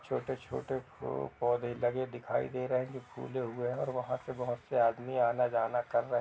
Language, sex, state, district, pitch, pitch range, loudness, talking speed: Hindi, male, Uttar Pradesh, Jalaun, 120 Hz, 120-125 Hz, -34 LUFS, 210 wpm